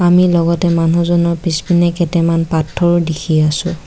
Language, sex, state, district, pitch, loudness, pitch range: Assamese, female, Assam, Kamrup Metropolitan, 170 Hz, -14 LUFS, 165-175 Hz